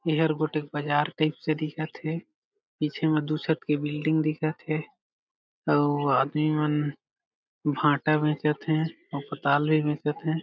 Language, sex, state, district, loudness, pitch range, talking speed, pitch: Chhattisgarhi, male, Chhattisgarh, Jashpur, -27 LUFS, 150-155 Hz, 150 wpm, 155 Hz